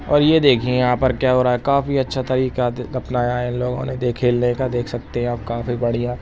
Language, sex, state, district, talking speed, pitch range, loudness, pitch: Hindi, female, Maharashtra, Dhule, 240 wpm, 120-130 Hz, -19 LUFS, 125 Hz